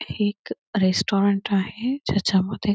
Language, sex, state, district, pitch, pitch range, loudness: Marathi, female, Karnataka, Belgaum, 200 Hz, 195-205 Hz, -23 LUFS